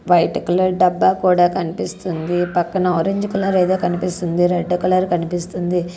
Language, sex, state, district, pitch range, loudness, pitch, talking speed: Telugu, female, Andhra Pradesh, Annamaya, 175-185 Hz, -18 LUFS, 180 Hz, 130 wpm